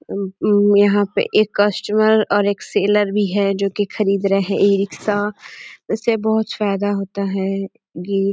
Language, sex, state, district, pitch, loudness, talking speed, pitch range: Hindi, female, Uttar Pradesh, Deoria, 205 Hz, -18 LUFS, 175 wpm, 195-210 Hz